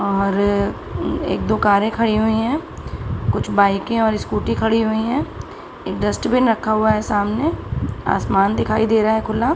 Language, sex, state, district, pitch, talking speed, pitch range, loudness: Hindi, female, Bihar, Araria, 220 Hz, 165 wpm, 205-225 Hz, -19 LUFS